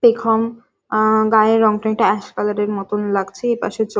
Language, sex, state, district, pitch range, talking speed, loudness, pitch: Bengali, female, West Bengal, Jhargram, 210-225 Hz, 180 wpm, -18 LUFS, 220 Hz